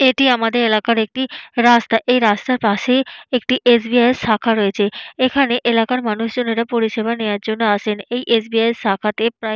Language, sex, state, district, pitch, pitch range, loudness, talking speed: Bengali, female, West Bengal, Jalpaiguri, 230 Hz, 220-245 Hz, -17 LUFS, 180 wpm